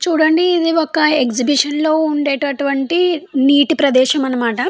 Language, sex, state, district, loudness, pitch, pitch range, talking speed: Telugu, female, Andhra Pradesh, Anantapur, -15 LUFS, 295 Hz, 275-320 Hz, 130 wpm